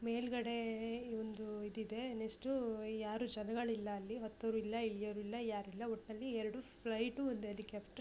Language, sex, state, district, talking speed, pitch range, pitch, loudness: Kannada, female, Karnataka, Bijapur, 150 wpm, 215-235 Hz, 225 Hz, -43 LUFS